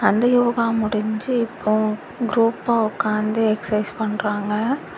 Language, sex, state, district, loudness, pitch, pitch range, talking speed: Tamil, female, Tamil Nadu, Kanyakumari, -21 LUFS, 220 Hz, 215-235 Hz, 95 wpm